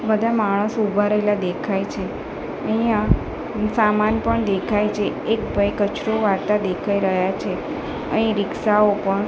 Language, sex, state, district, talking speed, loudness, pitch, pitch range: Gujarati, female, Gujarat, Gandhinagar, 140 wpm, -21 LUFS, 210 Hz, 200-220 Hz